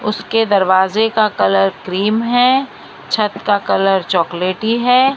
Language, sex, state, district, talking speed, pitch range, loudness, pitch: Hindi, female, Maharashtra, Mumbai Suburban, 125 wpm, 190-225 Hz, -15 LUFS, 210 Hz